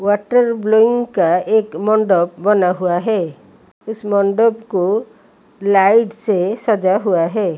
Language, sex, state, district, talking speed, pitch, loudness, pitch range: Hindi, female, Odisha, Malkangiri, 120 wpm, 205 Hz, -16 LUFS, 185-220 Hz